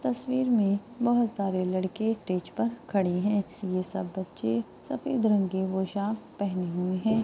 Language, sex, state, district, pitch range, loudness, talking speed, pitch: Hindi, female, Rajasthan, Churu, 185-225 Hz, -29 LUFS, 165 wpm, 200 Hz